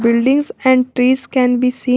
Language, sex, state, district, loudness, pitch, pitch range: English, female, Jharkhand, Garhwa, -15 LUFS, 255 Hz, 250-260 Hz